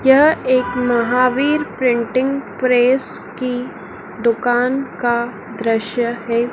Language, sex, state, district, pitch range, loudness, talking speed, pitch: Hindi, female, Madhya Pradesh, Dhar, 235-255 Hz, -17 LUFS, 90 wpm, 245 Hz